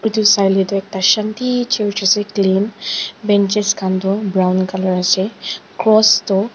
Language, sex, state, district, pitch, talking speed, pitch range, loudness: Nagamese, female, Nagaland, Dimapur, 200 Hz, 145 wpm, 190-215 Hz, -15 LUFS